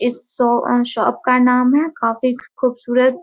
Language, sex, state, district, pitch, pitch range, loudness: Hindi, female, Bihar, Muzaffarpur, 250 Hz, 240-255 Hz, -17 LUFS